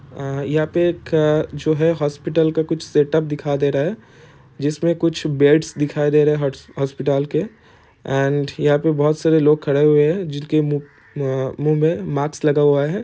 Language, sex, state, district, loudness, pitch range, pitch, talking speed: Hindi, male, Bihar, East Champaran, -19 LUFS, 145-160 Hz, 150 Hz, 190 wpm